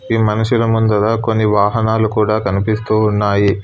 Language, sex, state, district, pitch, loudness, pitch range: Telugu, male, Telangana, Hyderabad, 110 Hz, -15 LUFS, 105-110 Hz